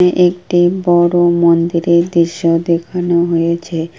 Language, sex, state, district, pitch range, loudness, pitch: Bengali, female, West Bengal, Kolkata, 170-175 Hz, -13 LUFS, 170 Hz